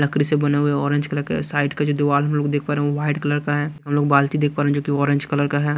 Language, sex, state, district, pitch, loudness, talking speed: Hindi, male, Chhattisgarh, Raipur, 145 Hz, -20 LUFS, 310 wpm